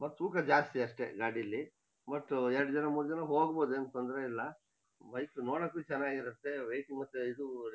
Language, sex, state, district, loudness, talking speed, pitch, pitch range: Kannada, male, Karnataka, Shimoga, -36 LUFS, 140 wpm, 140 Hz, 130-150 Hz